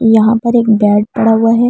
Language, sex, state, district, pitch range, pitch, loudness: Hindi, female, Delhi, New Delhi, 220-235 Hz, 225 Hz, -11 LUFS